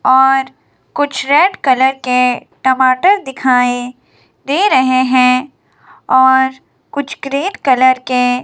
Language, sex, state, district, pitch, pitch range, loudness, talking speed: Hindi, male, Himachal Pradesh, Shimla, 260 Hz, 255-275 Hz, -13 LUFS, 105 wpm